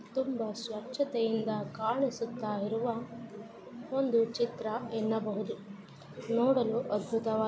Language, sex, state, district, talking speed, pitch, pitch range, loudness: Kannada, female, Karnataka, Dharwad, 70 wpm, 225 Hz, 220-240 Hz, -33 LUFS